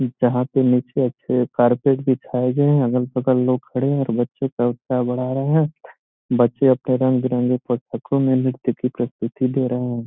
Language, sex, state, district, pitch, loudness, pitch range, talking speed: Hindi, male, Bihar, Gopalganj, 125 Hz, -20 LUFS, 125-130 Hz, 165 wpm